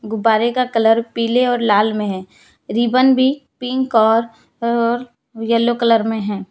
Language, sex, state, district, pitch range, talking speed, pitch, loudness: Hindi, female, Jharkhand, Deoghar, 220-245 Hz, 155 wpm, 230 Hz, -17 LUFS